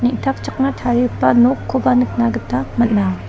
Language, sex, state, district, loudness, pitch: Garo, female, Meghalaya, South Garo Hills, -17 LUFS, 210 Hz